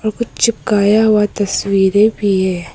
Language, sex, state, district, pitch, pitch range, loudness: Hindi, female, Arunachal Pradesh, Papum Pare, 210 Hz, 195-220 Hz, -14 LUFS